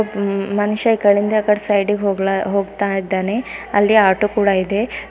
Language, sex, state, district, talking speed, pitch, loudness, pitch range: Kannada, female, Karnataka, Bidar, 155 wpm, 205 Hz, -17 LUFS, 195-210 Hz